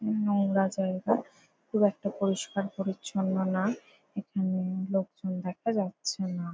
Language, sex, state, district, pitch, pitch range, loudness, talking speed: Bengali, female, West Bengal, Jalpaiguri, 195 Hz, 190-205 Hz, -30 LUFS, 100 wpm